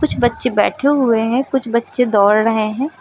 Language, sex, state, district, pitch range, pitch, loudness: Hindi, female, Uttar Pradesh, Lucknow, 225-270 Hz, 240 Hz, -16 LUFS